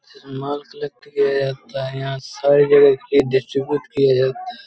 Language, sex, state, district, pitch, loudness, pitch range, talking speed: Hindi, male, Uttar Pradesh, Hamirpur, 140 Hz, -18 LUFS, 135-145 Hz, 65 wpm